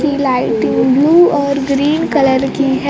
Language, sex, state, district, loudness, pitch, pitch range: Hindi, female, Bihar, Kaimur, -13 LUFS, 280 Hz, 270-295 Hz